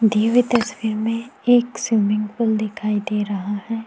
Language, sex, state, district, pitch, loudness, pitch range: Hindi, female, Uttarakhand, Tehri Garhwal, 220 Hz, -20 LUFS, 210-230 Hz